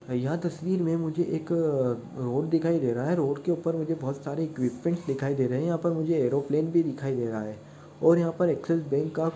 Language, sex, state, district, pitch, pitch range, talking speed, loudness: Hindi, male, Maharashtra, Aurangabad, 160 Hz, 135-165 Hz, 225 wpm, -27 LUFS